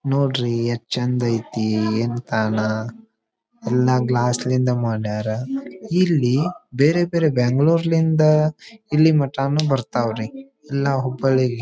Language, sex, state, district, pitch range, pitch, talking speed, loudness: Kannada, male, Karnataka, Dharwad, 120-150 Hz, 130 Hz, 110 wpm, -20 LUFS